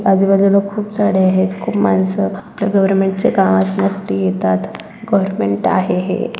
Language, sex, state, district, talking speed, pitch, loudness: Marathi, female, Maharashtra, Solapur, 140 wpm, 185 Hz, -15 LUFS